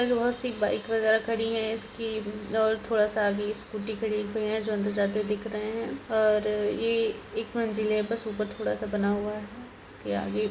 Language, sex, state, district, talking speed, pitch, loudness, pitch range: Hindi, female, Bihar, Purnia, 190 wpm, 215 Hz, -28 LUFS, 210-225 Hz